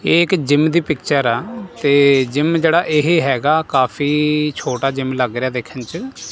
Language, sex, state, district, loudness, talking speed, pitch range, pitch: Punjabi, male, Punjab, Kapurthala, -16 LUFS, 170 wpm, 135-165 Hz, 150 Hz